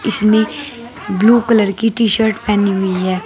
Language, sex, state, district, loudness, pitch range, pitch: Hindi, female, Uttar Pradesh, Saharanpur, -14 LUFS, 200-230 Hz, 220 Hz